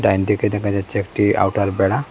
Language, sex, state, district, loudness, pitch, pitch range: Bengali, male, Assam, Hailakandi, -19 LUFS, 100 Hz, 95-105 Hz